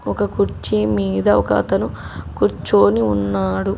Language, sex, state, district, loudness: Telugu, female, Telangana, Hyderabad, -18 LUFS